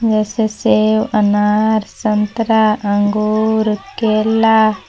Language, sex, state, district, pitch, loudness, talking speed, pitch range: Hindi, female, Jharkhand, Palamu, 215 Hz, -15 LUFS, 75 wpm, 210-220 Hz